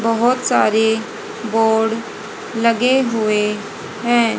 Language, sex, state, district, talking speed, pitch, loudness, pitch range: Hindi, female, Haryana, Charkhi Dadri, 80 wpm, 225 Hz, -17 LUFS, 220-235 Hz